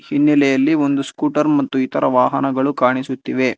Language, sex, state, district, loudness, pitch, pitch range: Kannada, male, Karnataka, Bangalore, -17 LUFS, 135 Hz, 130-145 Hz